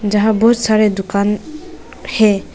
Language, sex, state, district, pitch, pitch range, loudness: Hindi, female, Arunachal Pradesh, Papum Pare, 215 Hz, 205-230 Hz, -15 LUFS